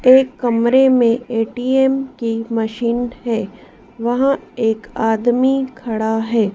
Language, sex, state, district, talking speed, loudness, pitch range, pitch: Hindi, female, Madhya Pradesh, Dhar, 110 wpm, -17 LUFS, 225-260 Hz, 235 Hz